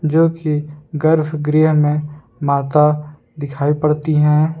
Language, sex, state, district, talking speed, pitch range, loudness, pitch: Hindi, male, Jharkhand, Palamu, 105 wpm, 150-155 Hz, -16 LUFS, 150 Hz